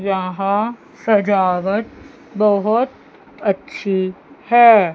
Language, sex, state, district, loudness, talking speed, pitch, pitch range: Hindi, female, Chandigarh, Chandigarh, -17 LUFS, 60 wpm, 205 Hz, 195-225 Hz